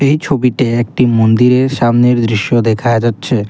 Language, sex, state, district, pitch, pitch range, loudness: Bengali, male, Assam, Kamrup Metropolitan, 120 Hz, 115-125 Hz, -12 LUFS